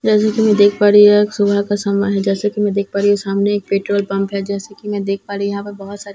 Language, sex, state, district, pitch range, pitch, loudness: Hindi, female, Bihar, Katihar, 200-205 Hz, 200 Hz, -15 LUFS